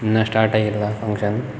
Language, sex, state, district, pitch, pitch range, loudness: Kannada, male, Karnataka, Bellary, 110 Hz, 105-110 Hz, -20 LUFS